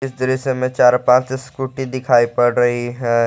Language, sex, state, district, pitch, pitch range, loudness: Hindi, male, Jharkhand, Garhwa, 130 Hz, 120-130 Hz, -17 LUFS